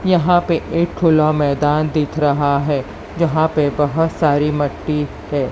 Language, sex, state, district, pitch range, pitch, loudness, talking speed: Hindi, female, Maharashtra, Mumbai Suburban, 145-160 Hz, 150 Hz, -17 LUFS, 150 wpm